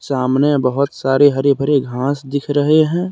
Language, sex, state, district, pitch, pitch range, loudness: Hindi, male, Jharkhand, Deoghar, 140 Hz, 135-145 Hz, -16 LUFS